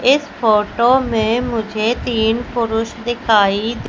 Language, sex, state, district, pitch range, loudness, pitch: Hindi, female, Madhya Pradesh, Katni, 220-240 Hz, -16 LUFS, 230 Hz